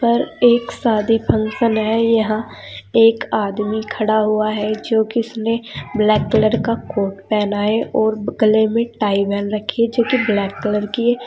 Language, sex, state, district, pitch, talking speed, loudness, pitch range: Hindi, female, Uttar Pradesh, Saharanpur, 215 Hz, 175 wpm, -17 LUFS, 210-230 Hz